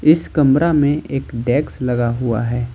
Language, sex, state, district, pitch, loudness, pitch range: Hindi, male, Jharkhand, Ranchi, 130 Hz, -17 LUFS, 120-150 Hz